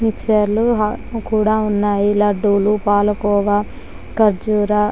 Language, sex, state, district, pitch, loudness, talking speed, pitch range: Telugu, female, Andhra Pradesh, Chittoor, 210 Hz, -17 LUFS, 85 wpm, 205-215 Hz